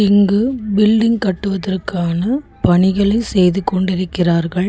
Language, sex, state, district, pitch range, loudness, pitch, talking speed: Tamil, female, Tamil Nadu, Chennai, 185-210 Hz, -16 LUFS, 195 Hz, 75 wpm